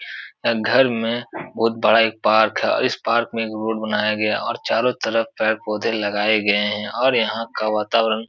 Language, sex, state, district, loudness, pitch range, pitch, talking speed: Hindi, male, Uttar Pradesh, Etah, -20 LUFS, 105-115 Hz, 110 Hz, 195 wpm